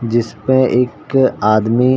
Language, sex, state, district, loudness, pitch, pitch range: Hindi, male, Uttar Pradesh, Ghazipur, -15 LUFS, 125 Hz, 115-130 Hz